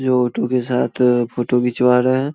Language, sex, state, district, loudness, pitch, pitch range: Hindi, male, Bihar, Samastipur, -17 LUFS, 125 Hz, 125-130 Hz